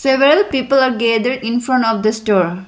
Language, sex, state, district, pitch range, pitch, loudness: English, female, Arunachal Pradesh, Lower Dibang Valley, 220-265 Hz, 240 Hz, -15 LUFS